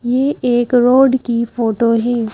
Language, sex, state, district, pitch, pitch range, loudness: Hindi, female, Madhya Pradesh, Bhopal, 240 Hz, 235-250 Hz, -14 LUFS